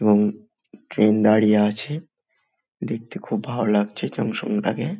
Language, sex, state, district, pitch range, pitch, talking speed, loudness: Bengali, male, West Bengal, Malda, 105-160 Hz, 105 Hz, 110 wpm, -22 LUFS